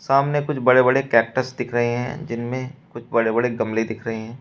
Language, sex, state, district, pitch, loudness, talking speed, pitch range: Hindi, male, Uttar Pradesh, Shamli, 125 Hz, -21 LUFS, 220 wpm, 115-130 Hz